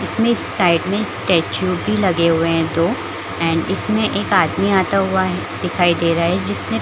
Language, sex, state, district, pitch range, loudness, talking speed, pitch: Hindi, female, Chhattisgarh, Bilaspur, 165-195 Hz, -17 LUFS, 175 wpm, 175 Hz